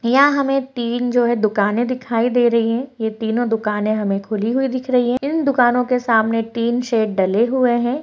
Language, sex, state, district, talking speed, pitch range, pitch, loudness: Hindi, female, Bihar, Araria, 215 wpm, 225-250 Hz, 240 Hz, -18 LUFS